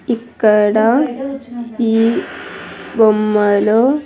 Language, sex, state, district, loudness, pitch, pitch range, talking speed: Telugu, female, Andhra Pradesh, Sri Satya Sai, -14 LUFS, 230 Hz, 215-245 Hz, 45 wpm